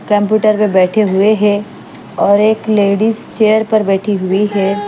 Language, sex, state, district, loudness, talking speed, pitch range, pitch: Hindi, female, Punjab, Fazilka, -13 LUFS, 160 wpm, 200-215 Hz, 210 Hz